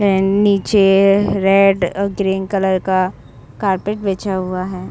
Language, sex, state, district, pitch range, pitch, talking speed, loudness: Hindi, female, Bihar, Saran, 185-200 Hz, 195 Hz, 135 wpm, -16 LUFS